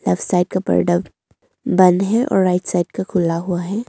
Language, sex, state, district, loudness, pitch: Hindi, female, Arunachal Pradesh, Longding, -18 LUFS, 180 Hz